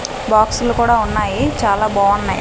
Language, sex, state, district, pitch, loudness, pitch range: Telugu, female, Andhra Pradesh, Manyam, 220 Hz, -15 LUFS, 205-240 Hz